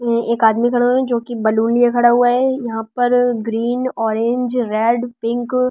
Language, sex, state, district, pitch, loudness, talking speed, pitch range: Hindi, female, Delhi, New Delhi, 240 Hz, -17 LUFS, 200 wpm, 230-245 Hz